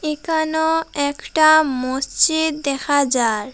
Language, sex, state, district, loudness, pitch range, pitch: Bengali, female, Assam, Hailakandi, -18 LUFS, 275-315 Hz, 295 Hz